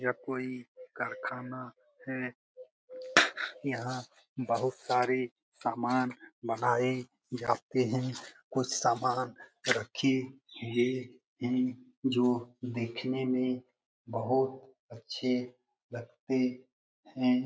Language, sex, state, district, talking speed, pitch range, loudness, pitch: Hindi, male, Bihar, Jamui, 90 wpm, 125-130 Hz, -32 LUFS, 125 Hz